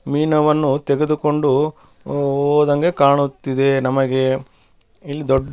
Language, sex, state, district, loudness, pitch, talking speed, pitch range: Kannada, male, Karnataka, Bellary, -18 LUFS, 140 Hz, 85 wpm, 135-150 Hz